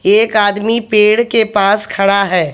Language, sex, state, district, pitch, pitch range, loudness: Hindi, male, Haryana, Jhajjar, 210 Hz, 200-220 Hz, -12 LUFS